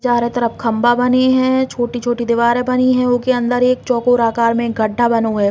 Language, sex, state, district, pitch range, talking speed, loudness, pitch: Bundeli, female, Uttar Pradesh, Hamirpur, 235-250 Hz, 205 wpm, -15 LUFS, 240 Hz